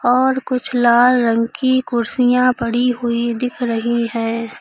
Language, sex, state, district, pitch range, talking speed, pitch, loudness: Hindi, female, Uttar Pradesh, Lucknow, 235-250 Hz, 145 wpm, 240 Hz, -17 LUFS